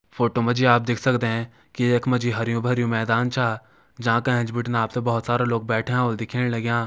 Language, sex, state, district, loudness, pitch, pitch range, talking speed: Garhwali, male, Uttarakhand, Uttarkashi, -22 LUFS, 120 Hz, 115-125 Hz, 225 wpm